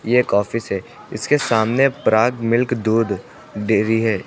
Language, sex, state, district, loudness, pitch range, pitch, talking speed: Hindi, male, Uttar Pradesh, Lucknow, -19 LUFS, 110-125 Hz, 115 Hz, 155 wpm